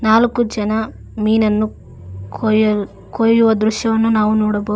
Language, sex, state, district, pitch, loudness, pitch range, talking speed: Kannada, female, Karnataka, Koppal, 215 Hz, -16 LUFS, 210-225 Hz, 100 wpm